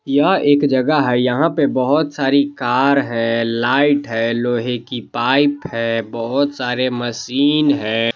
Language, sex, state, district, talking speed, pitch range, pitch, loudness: Hindi, male, Jharkhand, Palamu, 145 wpm, 120-145 Hz, 130 Hz, -17 LUFS